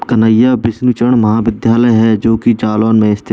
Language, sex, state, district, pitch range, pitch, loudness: Hindi, male, Uttar Pradesh, Jalaun, 110-120 Hz, 115 Hz, -11 LUFS